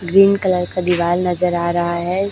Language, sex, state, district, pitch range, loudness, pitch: Hindi, female, Chhattisgarh, Raipur, 175-185 Hz, -17 LUFS, 180 Hz